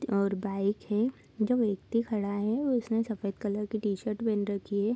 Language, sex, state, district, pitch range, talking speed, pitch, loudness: Hindi, female, Bihar, Darbhanga, 200-225 Hz, 180 wpm, 210 Hz, -31 LUFS